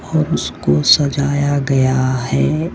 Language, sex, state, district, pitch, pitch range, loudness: Hindi, male, Maharashtra, Solapur, 140 Hz, 125-145 Hz, -15 LUFS